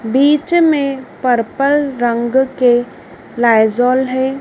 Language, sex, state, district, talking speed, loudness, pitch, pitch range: Hindi, female, Madhya Pradesh, Dhar, 95 wpm, -14 LUFS, 260 Hz, 240-275 Hz